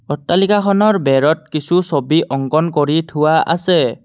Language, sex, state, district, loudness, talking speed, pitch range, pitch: Assamese, male, Assam, Kamrup Metropolitan, -15 LUFS, 120 wpm, 145-175 Hz, 160 Hz